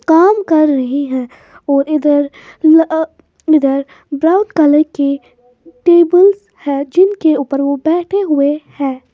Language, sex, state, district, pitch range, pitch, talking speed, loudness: Hindi, female, Maharashtra, Washim, 280-335 Hz, 300 Hz, 125 wpm, -13 LUFS